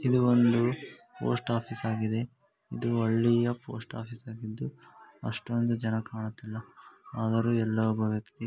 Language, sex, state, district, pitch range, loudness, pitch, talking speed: Kannada, male, Karnataka, Gulbarga, 110-120 Hz, -30 LUFS, 115 Hz, 125 wpm